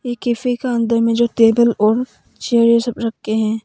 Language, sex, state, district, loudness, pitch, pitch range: Hindi, female, Arunachal Pradesh, Papum Pare, -16 LUFS, 235 Hz, 225-240 Hz